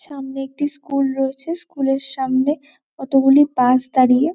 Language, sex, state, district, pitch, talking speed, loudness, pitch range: Bengali, female, West Bengal, Malda, 270 Hz, 140 wpm, -18 LUFS, 265-290 Hz